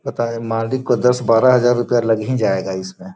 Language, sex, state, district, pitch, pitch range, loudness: Hindi, male, Bihar, Gopalganj, 120 Hz, 115-130 Hz, -17 LUFS